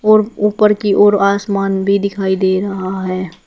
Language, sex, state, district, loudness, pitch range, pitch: Hindi, female, Uttar Pradesh, Shamli, -14 LUFS, 190-205 Hz, 200 Hz